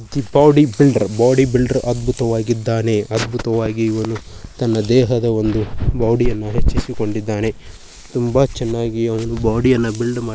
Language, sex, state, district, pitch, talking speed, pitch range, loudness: Kannada, male, Karnataka, Bijapur, 115 Hz, 115 wpm, 110-125 Hz, -17 LUFS